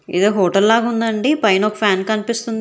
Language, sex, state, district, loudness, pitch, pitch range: Telugu, female, Telangana, Hyderabad, -16 LUFS, 215 Hz, 205-230 Hz